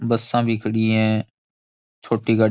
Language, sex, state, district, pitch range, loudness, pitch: Rajasthani, male, Rajasthan, Churu, 110-115 Hz, -21 LUFS, 110 Hz